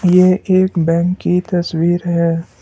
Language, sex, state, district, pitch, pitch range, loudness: Hindi, male, Assam, Kamrup Metropolitan, 175 Hz, 170-185 Hz, -15 LUFS